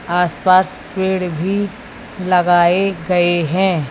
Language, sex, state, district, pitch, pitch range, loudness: Hindi, female, Uttar Pradesh, Lalitpur, 180 Hz, 175-190 Hz, -16 LUFS